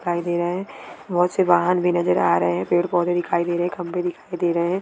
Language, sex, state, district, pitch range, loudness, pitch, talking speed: Hindi, female, Maharashtra, Sindhudurg, 175-180 Hz, -21 LUFS, 175 Hz, 275 wpm